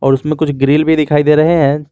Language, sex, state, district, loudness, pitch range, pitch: Hindi, male, Jharkhand, Garhwa, -12 LUFS, 145-155 Hz, 150 Hz